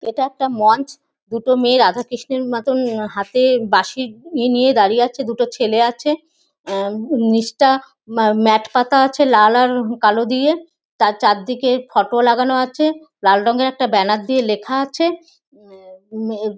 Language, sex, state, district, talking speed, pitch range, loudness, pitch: Bengali, female, West Bengal, North 24 Parganas, 145 wpm, 220-265 Hz, -16 LUFS, 245 Hz